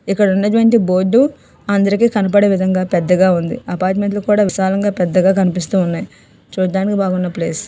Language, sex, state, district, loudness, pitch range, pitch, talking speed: Telugu, female, Andhra Pradesh, Visakhapatnam, -15 LUFS, 185-205 Hz, 190 Hz, 140 wpm